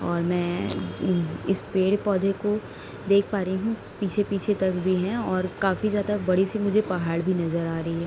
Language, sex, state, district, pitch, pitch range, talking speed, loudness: Hindi, female, Uttar Pradesh, Etah, 190 Hz, 175-205 Hz, 210 wpm, -25 LUFS